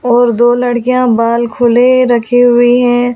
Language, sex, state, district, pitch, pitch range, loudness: Hindi, female, Delhi, New Delhi, 245 Hz, 240-245 Hz, -10 LUFS